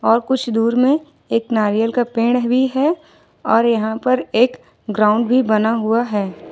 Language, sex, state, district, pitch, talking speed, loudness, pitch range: Hindi, female, Jharkhand, Ranchi, 230 Hz, 175 wpm, -17 LUFS, 220-255 Hz